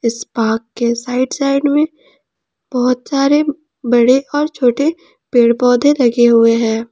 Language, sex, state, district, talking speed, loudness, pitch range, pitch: Hindi, male, Jharkhand, Ranchi, 140 wpm, -14 LUFS, 235-285 Hz, 250 Hz